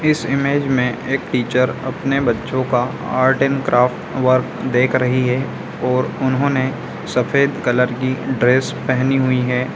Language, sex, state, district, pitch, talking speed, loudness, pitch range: Hindi, male, Bihar, Samastipur, 130 Hz, 150 wpm, -18 LUFS, 125-135 Hz